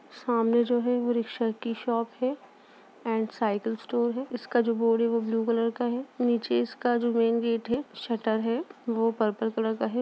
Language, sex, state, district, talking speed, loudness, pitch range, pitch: Hindi, female, Uttar Pradesh, Jalaun, 200 wpm, -28 LUFS, 225-245 Hz, 230 Hz